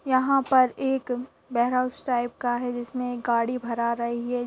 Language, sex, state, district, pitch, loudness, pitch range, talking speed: Hindi, female, Bihar, Araria, 245 Hz, -26 LUFS, 240-255 Hz, 190 wpm